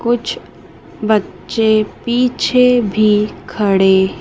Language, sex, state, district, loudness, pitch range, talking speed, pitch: Hindi, female, Madhya Pradesh, Dhar, -15 LUFS, 205-240 Hz, 70 wpm, 215 Hz